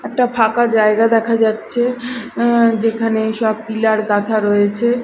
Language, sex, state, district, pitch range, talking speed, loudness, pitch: Bengali, female, Odisha, Malkangiri, 220-235 Hz, 130 wpm, -16 LUFS, 225 Hz